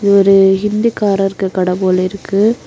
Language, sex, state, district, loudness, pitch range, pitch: Tamil, female, Tamil Nadu, Kanyakumari, -13 LUFS, 190-205 Hz, 195 Hz